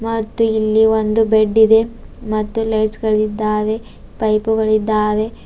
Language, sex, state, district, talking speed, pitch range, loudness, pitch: Kannada, female, Karnataka, Bidar, 120 wpm, 215-225 Hz, -16 LUFS, 220 Hz